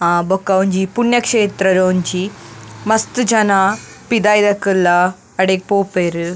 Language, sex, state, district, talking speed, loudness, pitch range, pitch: Tulu, female, Karnataka, Dakshina Kannada, 95 wpm, -15 LUFS, 180-210 Hz, 190 Hz